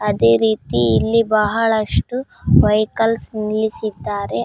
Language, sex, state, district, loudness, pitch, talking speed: Kannada, female, Karnataka, Raichur, -17 LUFS, 215 Hz, 80 wpm